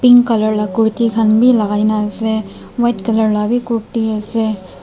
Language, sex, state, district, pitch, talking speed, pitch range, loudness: Nagamese, male, Nagaland, Dimapur, 220 Hz, 100 wpm, 215-230 Hz, -15 LUFS